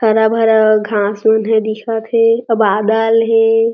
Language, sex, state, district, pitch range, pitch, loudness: Chhattisgarhi, female, Chhattisgarh, Jashpur, 220-225 Hz, 220 Hz, -13 LUFS